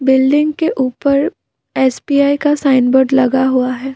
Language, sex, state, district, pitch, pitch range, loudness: Hindi, female, Assam, Kamrup Metropolitan, 265 Hz, 260-285 Hz, -14 LUFS